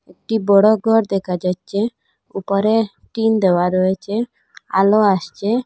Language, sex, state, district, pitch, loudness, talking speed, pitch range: Bengali, female, Assam, Hailakandi, 200 Hz, -17 LUFS, 115 wpm, 190-220 Hz